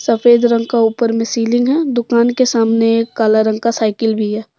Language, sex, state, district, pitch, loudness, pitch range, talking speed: Hindi, female, Jharkhand, Deoghar, 230 Hz, -14 LUFS, 225-240 Hz, 210 wpm